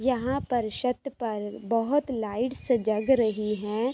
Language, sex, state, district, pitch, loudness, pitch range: Hindi, female, Uttar Pradesh, Ghazipur, 235 Hz, -27 LUFS, 215-260 Hz